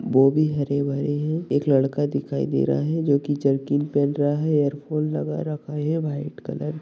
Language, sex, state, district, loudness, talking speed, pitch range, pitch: Hindi, male, Maharashtra, Sindhudurg, -23 LUFS, 195 wpm, 140-150 Hz, 145 Hz